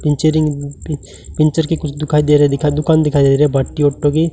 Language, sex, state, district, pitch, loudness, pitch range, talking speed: Hindi, male, Rajasthan, Bikaner, 150 Hz, -15 LUFS, 145-155 Hz, 220 wpm